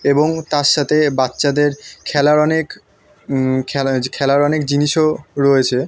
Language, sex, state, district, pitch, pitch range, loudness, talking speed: Bengali, male, West Bengal, North 24 Parganas, 145 Hz, 135-150 Hz, -16 LUFS, 120 wpm